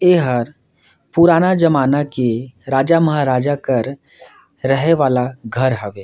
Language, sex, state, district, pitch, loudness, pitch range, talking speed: Surgujia, male, Chhattisgarh, Sarguja, 135 Hz, -16 LUFS, 125-160 Hz, 110 wpm